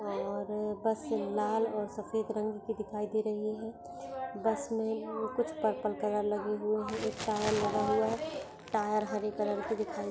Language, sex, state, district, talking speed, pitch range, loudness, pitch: Hindi, female, Maharashtra, Pune, 185 wpm, 210-220 Hz, -34 LUFS, 215 Hz